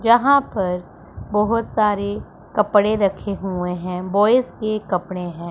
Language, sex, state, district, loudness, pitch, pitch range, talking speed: Hindi, female, Punjab, Pathankot, -20 LUFS, 205 Hz, 180-215 Hz, 130 wpm